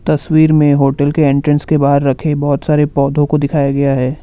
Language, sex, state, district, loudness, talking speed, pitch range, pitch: Hindi, male, Assam, Kamrup Metropolitan, -13 LUFS, 215 wpm, 140-150 Hz, 145 Hz